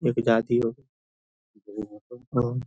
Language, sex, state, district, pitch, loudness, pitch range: Hindi, male, Bihar, Darbhanga, 115 Hz, -26 LUFS, 105-120 Hz